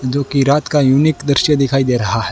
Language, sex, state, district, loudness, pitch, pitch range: Hindi, male, Rajasthan, Bikaner, -14 LUFS, 140 Hz, 130-145 Hz